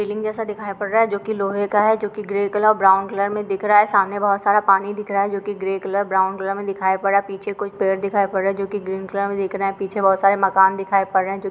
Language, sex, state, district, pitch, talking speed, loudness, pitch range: Hindi, female, Chhattisgarh, Sukma, 200 Hz, 325 wpm, -20 LUFS, 195-205 Hz